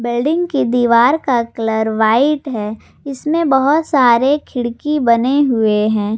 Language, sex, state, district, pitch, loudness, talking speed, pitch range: Hindi, female, Jharkhand, Ranchi, 245 Hz, -15 LUFS, 135 wpm, 225-290 Hz